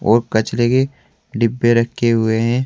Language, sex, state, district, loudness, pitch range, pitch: Hindi, male, Uttar Pradesh, Saharanpur, -17 LUFS, 115-125 Hz, 120 Hz